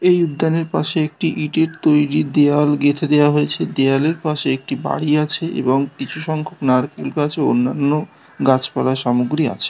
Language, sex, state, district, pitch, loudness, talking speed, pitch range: Bengali, male, West Bengal, North 24 Parganas, 150 Hz, -18 LUFS, 140 wpm, 140-160 Hz